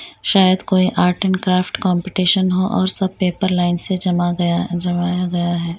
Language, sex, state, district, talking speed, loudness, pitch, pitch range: Hindi, female, Uttar Pradesh, Etah, 175 wpm, -17 LUFS, 185 Hz, 175-185 Hz